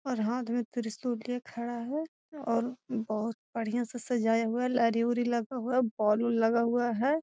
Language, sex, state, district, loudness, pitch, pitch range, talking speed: Magahi, female, Bihar, Gaya, -31 LUFS, 240 Hz, 230-250 Hz, 180 wpm